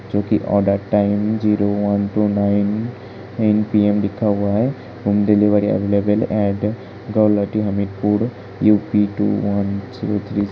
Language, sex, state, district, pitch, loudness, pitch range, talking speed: Hindi, male, Uttar Pradesh, Hamirpur, 105 Hz, -18 LUFS, 100-105 Hz, 145 wpm